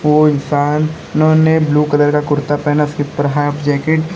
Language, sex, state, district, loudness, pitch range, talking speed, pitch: Hindi, male, Uttar Pradesh, Lalitpur, -14 LUFS, 145-155 Hz, 230 wpm, 150 Hz